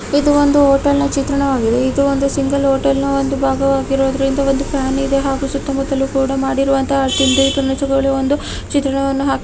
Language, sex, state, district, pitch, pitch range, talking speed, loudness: Kannada, female, Karnataka, Mysore, 275 Hz, 270-275 Hz, 100 wpm, -15 LUFS